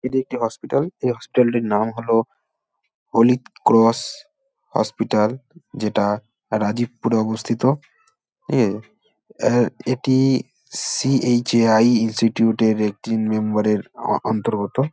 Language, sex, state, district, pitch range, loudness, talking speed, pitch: Bengali, male, West Bengal, Dakshin Dinajpur, 110-130 Hz, -20 LUFS, 100 wpm, 115 Hz